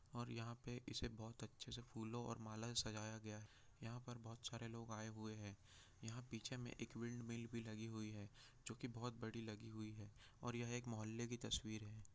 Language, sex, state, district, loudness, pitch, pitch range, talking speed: Hindi, male, Bihar, Jahanabad, -51 LUFS, 115 Hz, 110-120 Hz, 210 wpm